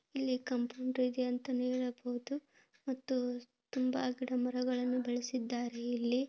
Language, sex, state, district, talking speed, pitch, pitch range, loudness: Kannada, female, Karnataka, Mysore, 105 wpm, 250 Hz, 245-255 Hz, -37 LUFS